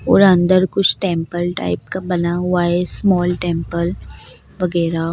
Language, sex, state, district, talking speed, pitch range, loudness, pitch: Hindi, female, Bihar, Sitamarhi, 140 wpm, 170-185 Hz, -17 LUFS, 175 Hz